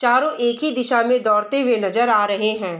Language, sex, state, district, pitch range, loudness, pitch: Hindi, female, Bihar, Darbhanga, 210-250 Hz, -18 LUFS, 240 Hz